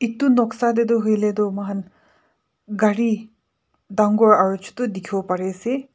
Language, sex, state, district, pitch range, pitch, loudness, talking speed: Nagamese, female, Nagaland, Kohima, 200-235 Hz, 215 Hz, -20 LUFS, 110 wpm